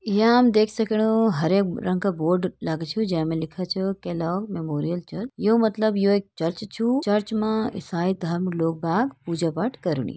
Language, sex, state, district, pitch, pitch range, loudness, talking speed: Hindi, female, Uttarakhand, Tehri Garhwal, 195 Hz, 170-220 Hz, -24 LUFS, 185 wpm